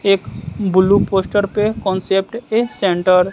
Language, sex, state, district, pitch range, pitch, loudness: Hindi, male, Bihar, West Champaran, 190-210 Hz, 195 Hz, -17 LUFS